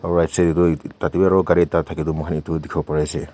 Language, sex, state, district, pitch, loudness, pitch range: Nagamese, male, Nagaland, Kohima, 85 Hz, -20 LUFS, 75-85 Hz